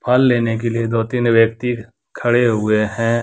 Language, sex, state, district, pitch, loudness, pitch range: Hindi, male, Jharkhand, Deoghar, 115 Hz, -17 LUFS, 115-120 Hz